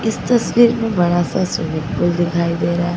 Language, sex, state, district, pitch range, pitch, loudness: Hindi, female, Maharashtra, Mumbai Suburban, 170-225 Hz, 175 Hz, -17 LUFS